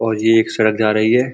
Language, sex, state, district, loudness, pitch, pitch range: Hindi, male, Uttar Pradesh, Muzaffarnagar, -15 LUFS, 110 Hz, 110-115 Hz